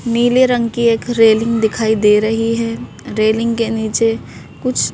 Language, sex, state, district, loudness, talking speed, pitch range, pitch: Hindi, female, Madhya Pradesh, Bhopal, -15 LUFS, 160 wpm, 220-235 Hz, 230 Hz